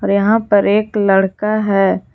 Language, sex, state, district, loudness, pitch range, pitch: Hindi, female, Jharkhand, Garhwa, -14 LUFS, 195-215 Hz, 205 Hz